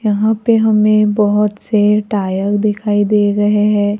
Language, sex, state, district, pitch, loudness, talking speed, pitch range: Hindi, female, Maharashtra, Gondia, 210 Hz, -14 LUFS, 150 wpm, 205-210 Hz